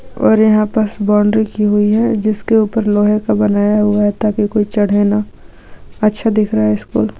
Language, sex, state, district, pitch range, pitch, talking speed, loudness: Hindi, female, Maharashtra, Aurangabad, 205-215 Hz, 210 Hz, 190 wpm, -14 LUFS